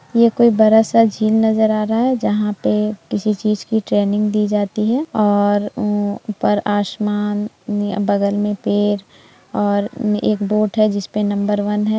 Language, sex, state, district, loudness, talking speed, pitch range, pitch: Hindi, female, Bihar, East Champaran, -17 LUFS, 180 wpm, 205-220 Hz, 210 Hz